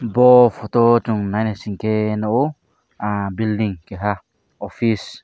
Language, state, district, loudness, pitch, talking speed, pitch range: Kokborok, Tripura, Dhalai, -18 LUFS, 110 Hz, 125 wpm, 105-115 Hz